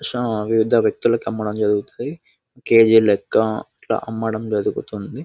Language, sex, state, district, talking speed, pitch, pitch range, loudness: Telugu, male, Telangana, Nalgonda, 105 wpm, 110 Hz, 105-115 Hz, -19 LUFS